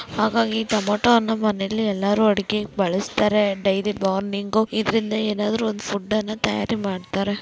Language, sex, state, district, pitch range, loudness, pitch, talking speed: Kannada, female, Karnataka, Raichur, 200-220 Hz, -22 LUFS, 210 Hz, 130 wpm